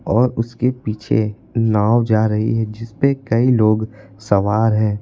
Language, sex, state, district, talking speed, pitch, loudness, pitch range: Hindi, male, Uttar Pradesh, Lucknow, 155 wpm, 110 Hz, -18 LUFS, 110-115 Hz